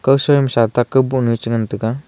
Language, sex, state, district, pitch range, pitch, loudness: Wancho, male, Arunachal Pradesh, Longding, 115-135 Hz, 120 Hz, -16 LUFS